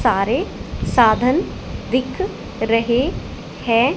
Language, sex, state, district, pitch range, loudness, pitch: Hindi, female, Haryana, Charkhi Dadri, 230-260 Hz, -19 LUFS, 245 Hz